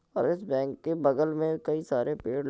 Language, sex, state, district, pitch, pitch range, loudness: Hindi, male, Uttar Pradesh, Jalaun, 150 Hz, 140-160 Hz, -29 LUFS